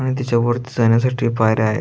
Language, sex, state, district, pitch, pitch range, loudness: Marathi, male, Maharashtra, Aurangabad, 120 Hz, 115-125 Hz, -18 LUFS